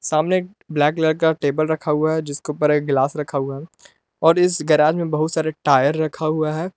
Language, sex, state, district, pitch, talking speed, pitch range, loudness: Hindi, male, Jharkhand, Palamu, 155 Hz, 230 wpm, 150-160 Hz, -19 LUFS